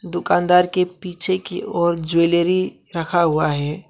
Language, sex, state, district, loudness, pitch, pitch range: Hindi, male, West Bengal, Alipurduar, -19 LUFS, 175 Hz, 170-180 Hz